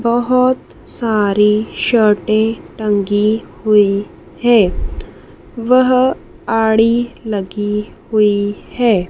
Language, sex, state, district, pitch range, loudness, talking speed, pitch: Hindi, female, Madhya Pradesh, Dhar, 210-235 Hz, -15 LUFS, 75 wpm, 220 Hz